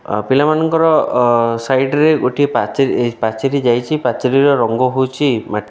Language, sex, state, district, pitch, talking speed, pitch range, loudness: Odia, male, Odisha, Khordha, 130 Hz, 135 wpm, 120-145 Hz, -15 LUFS